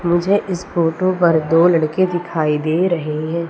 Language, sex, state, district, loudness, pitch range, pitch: Hindi, female, Madhya Pradesh, Umaria, -17 LUFS, 160-180 Hz, 170 Hz